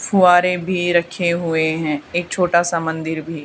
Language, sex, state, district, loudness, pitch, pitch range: Hindi, female, Haryana, Charkhi Dadri, -18 LUFS, 170 Hz, 160-180 Hz